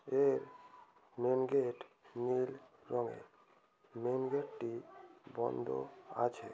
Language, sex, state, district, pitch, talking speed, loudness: Bengali, female, West Bengal, Kolkata, 130 Hz, 75 wpm, -38 LUFS